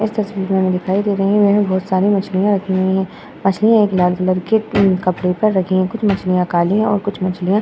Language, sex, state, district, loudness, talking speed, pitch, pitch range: Hindi, female, Uttar Pradesh, Hamirpur, -16 LUFS, 220 wpm, 195 Hz, 185-205 Hz